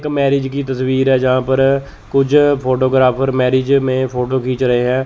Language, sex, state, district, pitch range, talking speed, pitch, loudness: Hindi, male, Chandigarh, Chandigarh, 130-135 Hz, 175 wpm, 130 Hz, -15 LUFS